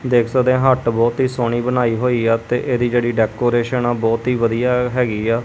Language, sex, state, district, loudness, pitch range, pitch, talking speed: Punjabi, male, Punjab, Kapurthala, -17 LUFS, 115-125 Hz, 120 Hz, 220 wpm